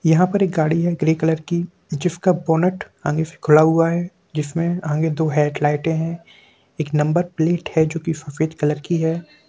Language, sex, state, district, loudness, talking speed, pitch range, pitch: Hindi, male, Bihar, Gopalganj, -20 LUFS, 185 wpm, 155-170 Hz, 160 Hz